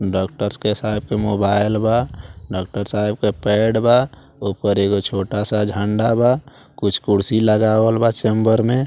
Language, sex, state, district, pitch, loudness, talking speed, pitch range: Bhojpuri, male, Bihar, Muzaffarpur, 105 Hz, -18 LUFS, 155 wpm, 100-115 Hz